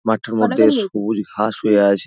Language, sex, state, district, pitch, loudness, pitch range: Bengali, male, West Bengal, Dakshin Dinajpur, 105 Hz, -17 LUFS, 105-110 Hz